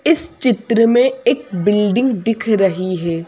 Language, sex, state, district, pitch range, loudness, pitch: Hindi, female, Madhya Pradesh, Bhopal, 195-250 Hz, -16 LUFS, 225 Hz